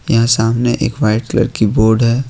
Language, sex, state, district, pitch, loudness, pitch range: Hindi, male, Jharkhand, Ranchi, 115 Hz, -14 LUFS, 110-120 Hz